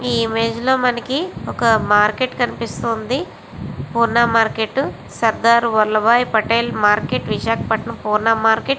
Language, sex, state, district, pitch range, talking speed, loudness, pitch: Telugu, female, Andhra Pradesh, Visakhapatnam, 220-240 Hz, 115 wpm, -17 LUFS, 230 Hz